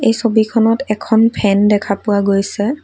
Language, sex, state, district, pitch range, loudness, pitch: Assamese, female, Assam, Kamrup Metropolitan, 205-225 Hz, -14 LUFS, 210 Hz